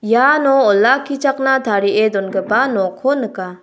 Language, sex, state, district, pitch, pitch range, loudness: Garo, female, Meghalaya, South Garo Hills, 220 Hz, 200-270 Hz, -15 LUFS